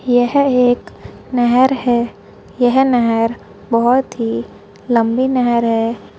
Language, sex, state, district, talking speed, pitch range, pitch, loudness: Hindi, female, Chhattisgarh, Kabirdham, 105 wpm, 230-255 Hz, 245 Hz, -15 LUFS